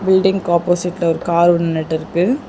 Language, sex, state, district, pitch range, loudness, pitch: Tamil, female, Tamil Nadu, Chennai, 165-180 Hz, -16 LUFS, 175 Hz